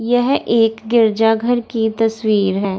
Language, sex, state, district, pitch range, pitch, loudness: Hindi, female, Bihar, Darbhanga, 220-235 Hz, 225 Hz, -16 LUFS